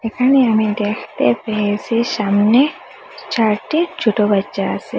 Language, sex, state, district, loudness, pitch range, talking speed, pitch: Bengali, female, Assam, Hailakandi, -16 LUFS, 205-255 Hz, 120 wpm, 220 Hz